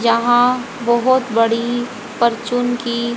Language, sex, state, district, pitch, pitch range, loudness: Hindi, female, Haryana, Jhajjar, 240 Hz, 235-245 Hz, -17 LUFS